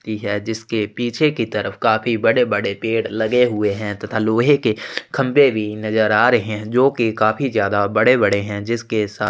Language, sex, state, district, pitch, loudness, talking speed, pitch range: Hindi, male, Chhattisgarh, Sukma, 110 Hz, -18 LUFS, 220 wpm, 105-120 Hz